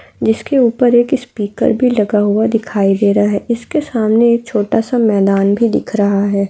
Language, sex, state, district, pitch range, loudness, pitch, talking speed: Hindi, female, Bihar, Araria, 205-240 Hz, -14 LUFS, 220 Hz, 195 wpm